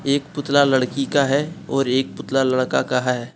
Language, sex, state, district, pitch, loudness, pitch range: Hindi, male, Jharkhand, Deoghar, 135 Hz, -20 LUFS, 130-140 Hz